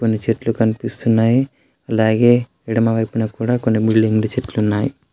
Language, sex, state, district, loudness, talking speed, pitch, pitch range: Telugu, male, Telangana, Adilabad, -17 LUFS, 115 wpm, 115 Hz, 110-120 Hz